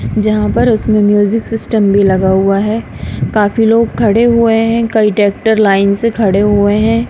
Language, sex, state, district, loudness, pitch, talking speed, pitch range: Hindi, female, Punjab, Kapurthala, -11 LUFS, 215 Hz, 180 wpm, 205-225 Hz